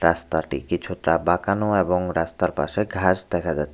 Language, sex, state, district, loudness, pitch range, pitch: Bengali, male, Tripura, West Tripura, -23 LUFS, 85-95 Hz, 90 Hz